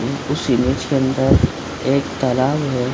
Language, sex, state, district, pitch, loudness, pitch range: Hindi, male, Bihar, Supaul, 130 Hz, -18 LUFS, 130-140 Hz